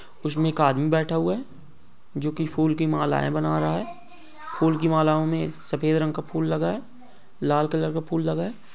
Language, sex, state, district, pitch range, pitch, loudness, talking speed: Hindi, male, Bihar, East Champaran, 155-165 Hz, 160 Hz, -24 LUFS, 205 wpm